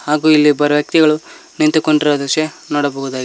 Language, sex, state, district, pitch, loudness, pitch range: Kannada, male, Karnataka, Koppal, 150 Hz, -14 LUFS, 145-155 Hz